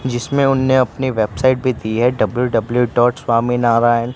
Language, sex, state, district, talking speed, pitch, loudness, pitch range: Hindi, male, Gujarat, Gandhinagar, 160 wpm, 120 Hz, -16 LUFS, 115-130 Hz